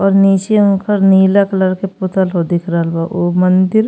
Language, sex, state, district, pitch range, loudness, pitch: Bhojpuri, female, Uttar Pradesh, Ghazipur, 180-195 Hz, -13 LUFS, 190 Hz